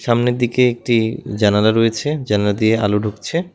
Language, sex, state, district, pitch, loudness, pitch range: Bengali, male, West Bengal, Alipurduar, 115 Hz, -17 LUFS, 105-125 Hz